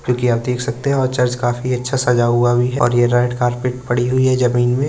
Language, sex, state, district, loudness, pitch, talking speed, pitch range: Hindi, male, Uttar Pradesh, Budaun, -17 LUFS, 125 Hz, 270 wpm, 120-125 Hz